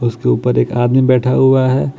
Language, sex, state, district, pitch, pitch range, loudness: Hindi, male, Jharkhand, Ranchi, 130 Hz, 120-130 Hz, -13 LUFS